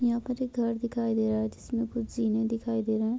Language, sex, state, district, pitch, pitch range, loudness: Hindi, female, Uttar Pradesh, Jyotiba Phule Nagar, 230 Hz, 220-235 Hz, -30 LUFS